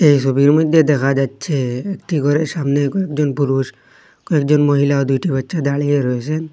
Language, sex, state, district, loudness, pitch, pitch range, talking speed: Bengali, male, Assam, Hailakandi, -16 LUFS, 145 Hz, 135-155 Hz, 145 wpm